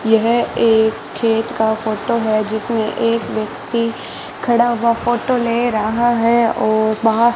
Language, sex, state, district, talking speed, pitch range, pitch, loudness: Hindi, female, Rajasthan, Bikaner, 145 wpm, 220-235 Hz, 230 Hz, -17 LUFS